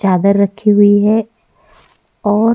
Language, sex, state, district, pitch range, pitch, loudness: Hindi, female, Chhattisgarh, Korba, 200-220 Hz, 205 Hz, -12 LUFS